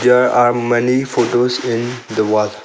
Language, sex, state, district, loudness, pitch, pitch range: English, male, Arunachal Pradesh, Longding, -15 LUFS, 120 Hz, 115-125 Hz